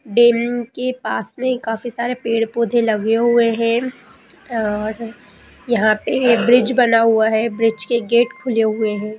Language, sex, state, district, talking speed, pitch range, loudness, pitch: Hindi, female, Bihar, Jamui, 155 wpm, 220-240 Hz, -17 LUFS, 235 Hz